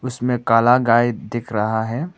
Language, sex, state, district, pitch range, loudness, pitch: Hindi, male, Arunachal Pradesh, Papum Pare, 115-125 Hz, -18 LUFS, 120 Hz